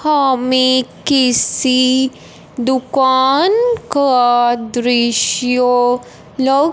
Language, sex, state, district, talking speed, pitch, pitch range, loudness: Hindi, male, Punjab, Fazilka, 55 wpm, 255 Hz, 245-275 Hz, -14 LUFS